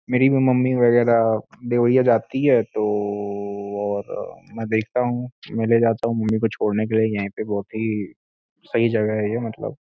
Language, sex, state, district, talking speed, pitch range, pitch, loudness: Hindi, male, Uttar Pradesh, Gorakhpur, 175 wpm, 105-120 Hz, 115 Hz, -21 LUFS